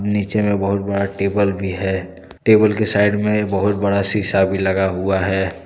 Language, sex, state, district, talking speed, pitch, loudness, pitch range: Hindi, male, Jharkhand, Deoghar, 200 wpm, 100 Hz, -18 LUFS, 95-105 Hz